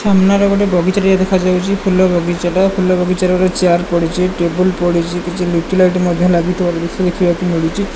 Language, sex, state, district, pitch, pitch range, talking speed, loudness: Odia, male, Odisha, Malkangiri, 180 Hz, 175-185 Hz, 175 wpm, -14 LUFS